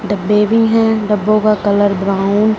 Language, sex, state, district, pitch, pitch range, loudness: Hindi, female, Punjab, Fazilka, 210 Hz, 205-215 Hz, -13 LUFS